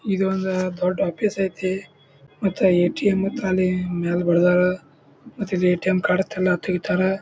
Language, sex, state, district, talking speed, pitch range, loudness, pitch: Kannada, male, Karnataka, Bijapur, 135 wpm, 175-195 Hz, -21 LUFS, 185 Hz